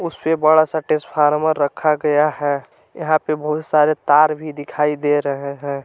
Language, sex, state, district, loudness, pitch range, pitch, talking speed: Hindi, male, Jharkhand, Palamu, -18 LUFS, 145-155 Hz, 150 Hz, 175 wpm